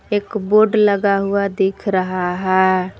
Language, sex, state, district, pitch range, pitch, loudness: Hindi, female, Jharkhand, Palamu, 185-205 Hz, 195 Hz, -17 LUFS